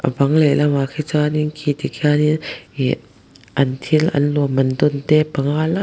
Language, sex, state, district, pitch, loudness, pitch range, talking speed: Mizo, male, Mizoram, Aizawl, 150 Hz, -18 LUFS, 140-155 Hz, 165 wpm